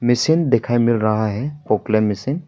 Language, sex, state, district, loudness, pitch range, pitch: Hindi, male, Arunachal Pradesh, Papum Pare, -18 LUFS, 110-135 Hz, 120 Hz